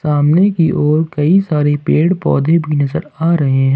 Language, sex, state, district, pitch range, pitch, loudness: Hindi, male, Jharkhand, Ranchi, 145-165 Hz, 155 Hz, -14 LUFS